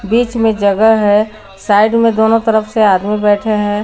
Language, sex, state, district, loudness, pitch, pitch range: Hindi, female, Jharkhand, Garhwa, -12 LUFS, 215 Hz, 205-220 Hz